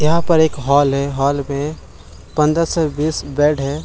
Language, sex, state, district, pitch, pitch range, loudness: Hindi, male, Bihar, Gaya, 145 Hz, 140-155 Hz, -17 LUFS